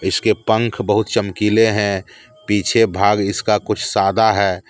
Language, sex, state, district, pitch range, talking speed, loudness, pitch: Hindi, male, Jharkhand, Deoghar, 100-110 Hz, 140 wpm, -17 LUFS, 105 Hz